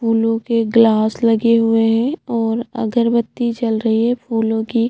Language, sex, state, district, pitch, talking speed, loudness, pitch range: Hindi, female, Chhattisgarh, Jashpur, 230 Hz, 170 wpm, -17 LUFS, 225-235 Hz